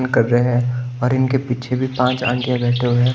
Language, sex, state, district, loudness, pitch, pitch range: Hindi, male, Himachal Pradesh, Shimla, -18 LUFS, 125 Hz, 120-125 Hz